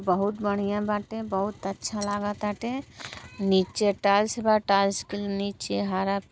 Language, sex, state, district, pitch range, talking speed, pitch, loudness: Bhojpuri, female, Uttar Pradesh, Gorakhpur, 195-210 Hz, 135 wpm, 200 Hz, -27 LUFS